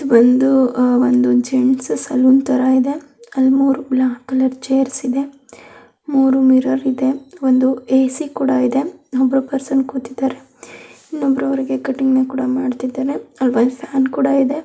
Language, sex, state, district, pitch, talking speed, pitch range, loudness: Kannada, female, Karnataka, Belgaum, 265 Hz, 130 wpm, 255-270 Hz, -16 LUFS